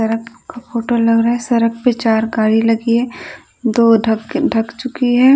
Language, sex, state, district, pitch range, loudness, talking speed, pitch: Hindi, female, Odisha, Nuapada, 225-245 Hz, -15 LUFS, 190 wpm, 230 Hz